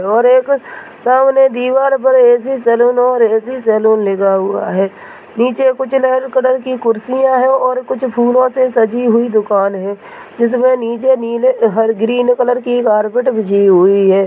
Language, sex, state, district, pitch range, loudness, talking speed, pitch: Hindi, male, Rajasthan, Nagaur, 220-255 Hz, -12 LUFS, 165 wpm, 245 Hz